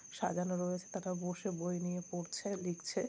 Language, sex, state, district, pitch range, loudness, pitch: Bengali, female, West Bengal, Kolkata, 175-185 Hz, -39 LUFS, 180 Hz